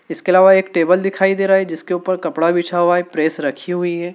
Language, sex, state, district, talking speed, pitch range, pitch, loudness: Hindi, male, Madhya Pradesh, Dhar, 260 wpm, 170-190 Hz, 175 Hz, -16 LUFS